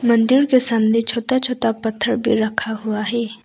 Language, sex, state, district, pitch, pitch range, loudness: Hindi, female, Arunachal Pradesh, Lower Dibang Valley, 230 Hz, 220-245 Hz, -18 LUFS